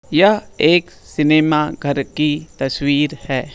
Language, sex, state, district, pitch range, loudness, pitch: Hindi, male, Bihar, Bhagalpur, 140-155 Hz, -17 LUFS, 150 Hz